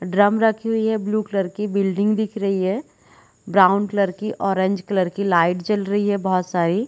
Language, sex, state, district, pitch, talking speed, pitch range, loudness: Hindi, female, Chhattisgarh, Bilaspur, 200 Hz, 200 wpm, 185-210 Hz, -20 LUFS